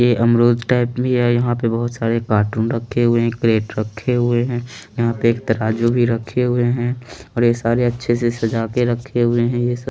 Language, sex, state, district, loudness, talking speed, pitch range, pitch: Hindi, male, Chandigarh, Chandigarh, -18 LUFS, 230 wpm, 115-120 Hz, 120 Hz